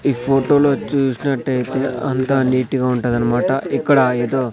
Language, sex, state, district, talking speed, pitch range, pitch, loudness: Telugu, male, Andhra Pradesh, Sri Satya Sai, 130 wpm, 125-135 Hz, 130 Hz, -17 LUFS